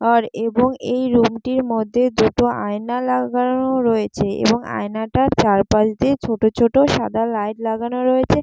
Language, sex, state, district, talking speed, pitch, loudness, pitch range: Bengali, female, West Bengal, Jalpaiguri, 140 wpm, 235 Hz, -18 LUFS, 220-250 Hz